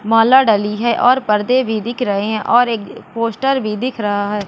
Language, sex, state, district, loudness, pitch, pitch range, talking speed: Hindi, female, Madhya Pradesh, Katni, -15 LUFS, 225 Hz, 210-245 Hz, 215 wpm